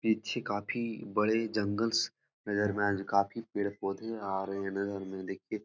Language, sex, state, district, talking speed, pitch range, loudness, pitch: Hindi, male, Bihar, Jahanabad, 170 wpm, 100-110 Hz, -33 LUFS, 100 Hz